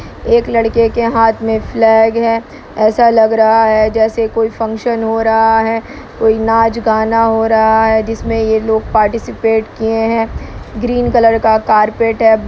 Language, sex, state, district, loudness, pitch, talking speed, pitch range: Hindi, male, Bihar, Kishanganj, -12 LUFS, 225 Hz, 160 wpm, 220-225 Hz